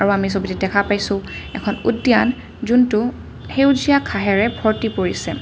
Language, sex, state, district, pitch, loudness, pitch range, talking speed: Assamese, female, Assam, Kamrup Metropolitan, 215 Hz, -18 LUFS, 200-240 Hz, 120 wpm